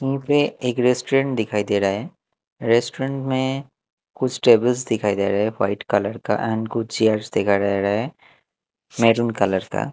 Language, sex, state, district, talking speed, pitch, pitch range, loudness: Hindi, male, Maharashtra, Mumbai Suburban, 175 wpm, 115 Hz, 100-130 Hz, -21 LUFS